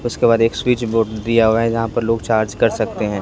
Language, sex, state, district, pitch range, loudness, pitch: Hindi, male, Chhattisgarh, Raipur, 110-115 Hz, -17 LUFS, 115 Hz